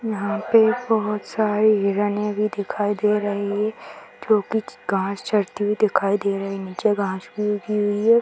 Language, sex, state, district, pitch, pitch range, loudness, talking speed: Hindi, female, Bihar, Jahanabad, 210 Hz, 200-215 Hz, -22 LUFS, 190 wpm